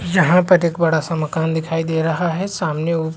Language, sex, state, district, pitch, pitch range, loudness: Hindi, male, Bihar, Supaul, 165 Hz, 160-180 Hz, -18 LUFS